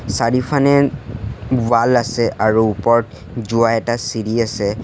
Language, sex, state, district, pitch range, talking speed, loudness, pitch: Assamese, male, Assam, Sonitpur, 110-120 Hz, 110 wpm, -16 LUFS, 115 Hz